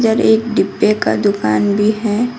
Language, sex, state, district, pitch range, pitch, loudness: Hindi, female, Karnataka, Koppal, 205-225 Hz, 215 Hz, -15 LUFS